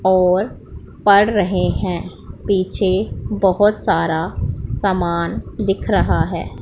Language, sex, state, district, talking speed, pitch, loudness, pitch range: Hindi, female, Punjab, Pathankot, 100 wpm, 195 Hz, -18 LUFS, 185-205 Hz